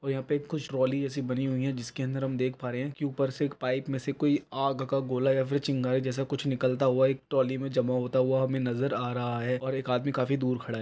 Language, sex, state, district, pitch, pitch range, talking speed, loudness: Hindi, male, Chhattisgarh, Raigarh, 130 Hz, 130-135 Hz, 285 wpm, -29 LUFS